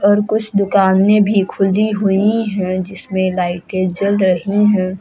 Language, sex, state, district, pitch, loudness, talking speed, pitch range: Hindi, female, Uttar Pradesh, Lucknow, 195 Hz, -15 LUFS, 145 wpm, 185-205 Hz